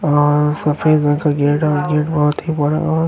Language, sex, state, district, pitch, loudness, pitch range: Hindi, male, Uttar Pradesh, Hamirpur, 150 Hz, -16 LUFS, 145-155 Hz